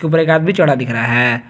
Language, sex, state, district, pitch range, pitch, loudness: Hindi, male, Jharkhand, Garhwa, 120-160 Hz, 135 Hz, -13 LUFS